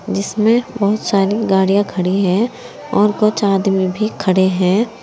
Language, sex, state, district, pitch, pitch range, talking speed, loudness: Hindi, female, Uttar Pradesh, Saharanpur, 200 Hz, 190-215 Hz, 145 wpm, -16 LUFS